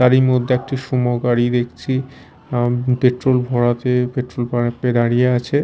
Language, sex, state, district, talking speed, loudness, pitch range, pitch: Bengali, male, Chhattisgarh, Raipur, 150 wpm, -18 LUFS, 120-130 Hz, 125 Hz